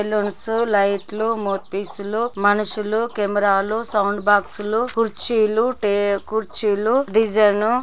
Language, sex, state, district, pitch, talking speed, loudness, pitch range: Telugu, male, Andhra Pradesh, Guntur, 210 Hz, 290 wpm, -20 LUFS, 205-225 Hz